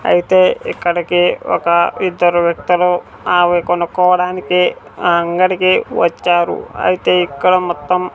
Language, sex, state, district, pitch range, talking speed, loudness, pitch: Telugu, male, Andhra Pradesh, Sri Satya Sai, 170-180 Hz, 95 wpm, -14 LUFS, 175 Hz